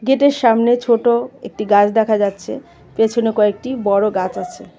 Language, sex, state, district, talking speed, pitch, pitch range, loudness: Bengali, female, Tripura, West Tripura, 165 wpm, 225 Hz, 205-240 Hz, -16 LUFS